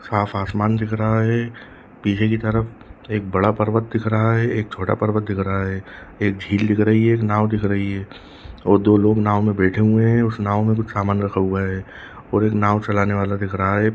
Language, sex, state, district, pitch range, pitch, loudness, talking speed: Hindi, male, Bihar, Jahanabad, 100-110 Hz, 105 Hz, -19 LUFS, 230 wpm